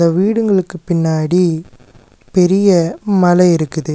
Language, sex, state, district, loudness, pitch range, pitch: Tamil, male, Tamil Nadu, Nilgiris, -14 LUFS, 160-180 Hz, 175 Hz